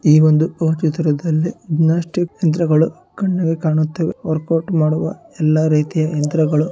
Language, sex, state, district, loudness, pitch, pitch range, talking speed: Kannada, male, Karnataka, Shimoga, -17 LUFS, 160 Hz, 155-165 Hz, 115 wpm